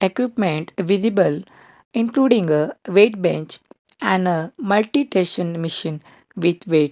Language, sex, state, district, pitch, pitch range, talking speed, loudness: English, male, Karnataka, Bangalore, 185 Hz, 165-215 Hz, 105 wpm, -20 LUFS